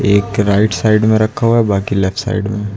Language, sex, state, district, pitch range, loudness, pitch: Hindi, male, Uttar Pradesh, Lucknow, 100-110 Hz, -14 LUFS, 105 Hz